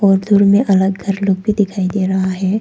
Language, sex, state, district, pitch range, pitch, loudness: Hindi, female, Arunachal Pradesh, Papum Pare, 190-200 Hz, 195 Hz, -15 LUFS